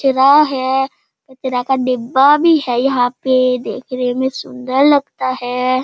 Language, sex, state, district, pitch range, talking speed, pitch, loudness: Hindi, female, Bihar, Sitamarhi, 250-270 Hz, 145 wpm, 260 Hz, -15 LUFS